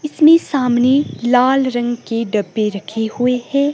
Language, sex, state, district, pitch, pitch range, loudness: Hindi, female, Himachal Pradesh, Shimla, 250 Hz, 230-275 Hz, -16 LUFS